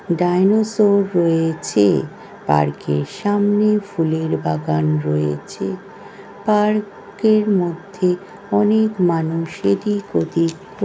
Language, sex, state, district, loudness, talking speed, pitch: Bengali, female, West Bengal, North 24 Parganas, -18 LUFS, 85 wpm, 175 Hz